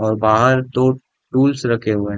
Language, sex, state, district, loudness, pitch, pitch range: Hindi, male, Bihar, Darbhanga, -17 LUFS, 125 Hz, 110-130 Hz